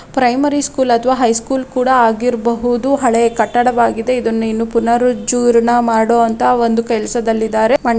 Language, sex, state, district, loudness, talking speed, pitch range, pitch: Kannada, female, Karnataka, Raichur, -14 LUFS, 115 wpm, 230-250 Hz, 235 Hz